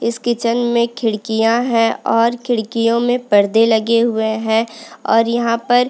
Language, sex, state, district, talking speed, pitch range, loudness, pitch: Hindi, female, Uttarakhand, Uttarkashi, 160 wpm, 225-235 Hz, -16 LUFS, 230 Hz